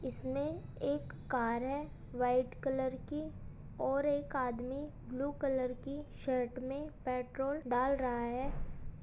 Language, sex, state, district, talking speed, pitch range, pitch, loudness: Hindi, female, Uttar Pradesh, Muzaffarnagar, 125 wpm, 255-280 Hz, 265 Hz, -37 LUFS